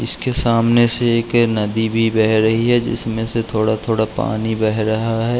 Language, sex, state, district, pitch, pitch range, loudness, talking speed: Hindi, male, Uttarakhand, Uttarkashi, 115 Hz, 110-120 Hz, -17 LUFS, 190 wpm